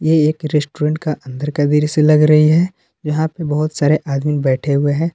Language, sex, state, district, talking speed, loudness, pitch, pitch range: Hindi, male, Jharkhand, Palamu, 210 wpm, -16 LUFS, 150 Hz, 145-155 Hz